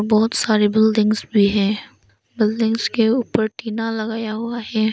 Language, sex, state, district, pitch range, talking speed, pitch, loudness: Hindi, female, Arunachal Pradesh, Lower Dibang Valley, 210-225 Hz, 145 wpm, 220 Hz, -19 LUFS